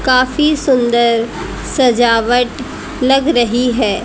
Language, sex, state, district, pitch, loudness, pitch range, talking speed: Hindi, female, Haryana, Rohtak, 245 Hz, -13 LUFS, 235-265 Hz, 90 wpm